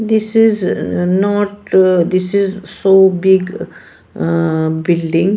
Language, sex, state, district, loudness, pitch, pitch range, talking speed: English, female, Punjab, Pathankot, -14 LUFS, 190 Hz, 175-200 Hz, 100 wpm